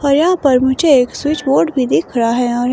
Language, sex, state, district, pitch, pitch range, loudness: Hindi, female, Himachal Pradesh, Shimla, 265 Hz, 245-290 Hz, -14 LUFS